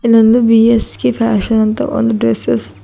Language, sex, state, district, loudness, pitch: Kannada, female, Karnataka, Bidar, -12 LUFS, 220 Hz